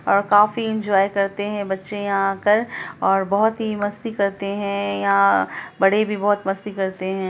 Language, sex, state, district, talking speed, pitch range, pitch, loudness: Hindi, female, Bihar, Saharsa, 180 wpm, 195-205 Hz, 200 Hz, -20 LUFS